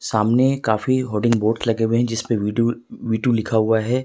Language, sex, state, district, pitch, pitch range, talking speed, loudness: Hindi, male, Jharkhand, Ranchi, 115 Hz, 110-120 Hz, 220 wpm, -20 LUFS